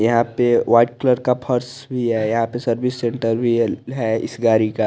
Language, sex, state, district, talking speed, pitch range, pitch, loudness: Hindi, male, Chandigarh, Chandigarh, 210 wpm, 115-125 Hz, 120 Hz, -19 LUFS